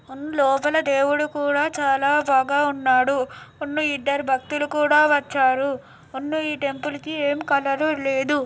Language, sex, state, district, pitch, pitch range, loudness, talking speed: Telugu, female, Telangana, Nalgonda, 285 Hz, 275-295 Hz, -21 LUFS, 130 wpm